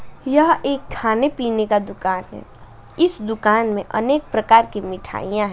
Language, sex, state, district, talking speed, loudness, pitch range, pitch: Hindi, female, Bihar, West Champaran, 165 wpm, -19 LUFS, 210-275 Hz, 220 Hz